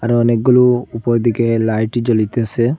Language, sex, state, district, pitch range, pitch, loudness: Bengali, male, Assam, Hailakandi, 115-120 Hz, 120 Hz, -15 LUFS